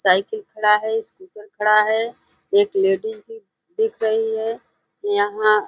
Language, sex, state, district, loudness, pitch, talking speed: Hindi, female, Uttar Pradesh, Deoria, -20 LUFS, 225 Hz, 150 wpm